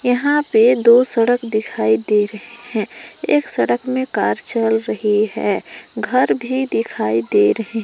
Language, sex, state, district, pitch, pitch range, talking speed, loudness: Hindi, female, Jharkhand, Palamu, 225 Hz, 205-245 Hz, 155 wpm, -16 LUFS